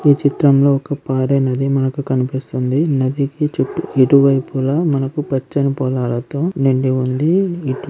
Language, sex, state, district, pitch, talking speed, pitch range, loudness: Telugu, male, Andhra Pradesh, Srikakulam, 135 Hz, 120 wpm, 130-145 Hz, -17 LUFS